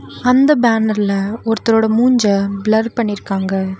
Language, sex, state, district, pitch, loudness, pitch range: Tamil, female, Tamil Nadu, Nilgiris, 220 Hz, -15 LUFS, 200-230 Hz